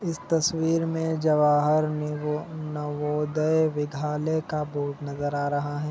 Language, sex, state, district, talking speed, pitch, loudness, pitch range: Hindi, male, Chhattisgarh, Rajnandgaon, 140 wpm, 150 Hz, -26 LUFS, 150-160 Hz